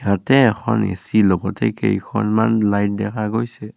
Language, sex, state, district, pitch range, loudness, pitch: Assamese, male, Assam, Kamrup Metropolitan, 100-110 Hz, -18 LUFS, 105 Hz